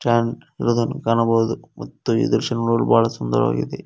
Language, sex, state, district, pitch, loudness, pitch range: Kannada, male, Karnataka, Koppal, 115 Hz, -20 LUFS, 115-120 Hz